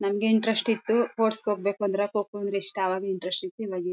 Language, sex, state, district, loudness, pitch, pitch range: Kannada, female, Karnataka, Mysore, -26 LUFS, 200 Hz, 195-220 Hz